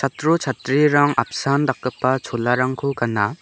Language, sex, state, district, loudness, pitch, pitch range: Garo, male, Meghalaya, West Garo Hills, -20 LUFS, 135 Hz, 125-145 Hz